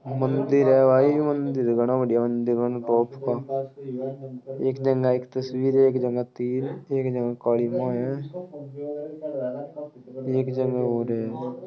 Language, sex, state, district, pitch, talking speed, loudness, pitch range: Hindi, male, Uttar Pradesh, Muzaffarnagar, 130 Hz, 125 wpm, -24 LUFS, 125-135 Hz